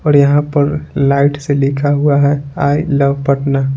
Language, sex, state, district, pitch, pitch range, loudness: Hindi, male, Bihar, Patna, 140 Hz, 140-145 Hz, -13 LUFS